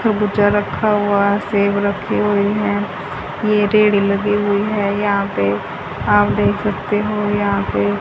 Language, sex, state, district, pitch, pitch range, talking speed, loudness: Hindi, female, Haryana, Charkhi Dadri, 205 Hz, 200-210 Hz, 155 wpm, -17 LUFS